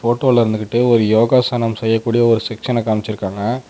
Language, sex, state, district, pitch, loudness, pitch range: Tamil, male, Tamil Nadu, Namakkal, 115 Hz, -16 LUFS, 110-120 Hz